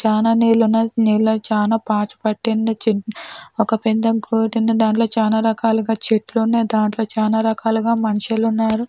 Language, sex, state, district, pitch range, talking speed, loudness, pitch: Telugu, female, Andhra Pradesh, Anantapur, 220-225 Hz, 130 wpm, -18 LUFS, 225 Hz